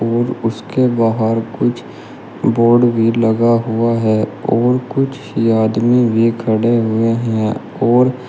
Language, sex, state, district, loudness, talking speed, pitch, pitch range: Hindi, male, Uttar Pradesh, Shamli, -15 LUFS, 125 wpm, 115 Hz, 110-120 Hz